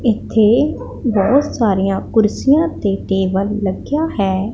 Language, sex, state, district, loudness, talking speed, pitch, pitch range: Punjabi, female, Punjab, Pathankot, -16 LUFS, 105 wpm, 215 Hz, 195-255 Hz